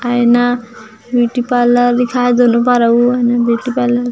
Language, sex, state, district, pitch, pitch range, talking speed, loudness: Chhattisgarhi, female, Chhattisgarh, Jashpur, 245 Hz, 240-245 Hz, 160 wpm, -13 LUFS